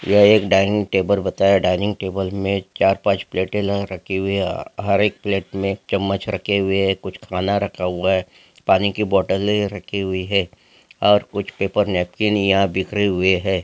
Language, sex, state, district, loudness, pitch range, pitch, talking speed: Hindi, male, Bihar, Gopalganj, -19 LUFS, 95-100 Hz, 100 Hz, 190 wpm